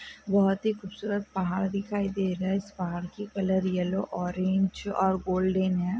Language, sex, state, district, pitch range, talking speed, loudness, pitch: Hindi, male, Jharkhand, Jamtara, 185-200 Hz, 170 wpm, -29 LUFS, 190 Hz